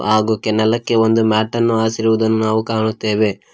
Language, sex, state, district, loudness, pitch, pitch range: Kannada, male, Karnataka, Koppal, -16 LUFS, 110 Hz, 110-115 Hz